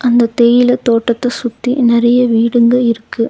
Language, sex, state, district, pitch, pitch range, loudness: Tamil, female, Tamil Nadu, Nilgiris, 240 Hz, 235-245 Hz, -12 LUFS